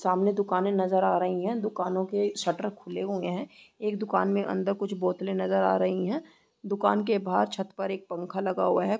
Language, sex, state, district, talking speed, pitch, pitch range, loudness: Hindi, female, Uttarakhand, Tehri Garhwal, 215 wpm, 190 Hz, 180-205 Hz, -28 LUFS